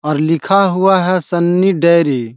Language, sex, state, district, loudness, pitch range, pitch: Hindi, male, Bihar, Jahanabad, -13 LUFS, 155-185 Hz, 175 Hz